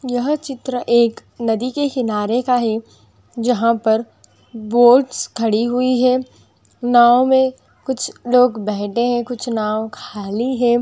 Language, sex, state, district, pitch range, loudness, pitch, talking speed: Hindi, female, Andhra Pradesh, Anantapur, 225-250 Hz, -17 LUFS, 240 Hz, 140 wpm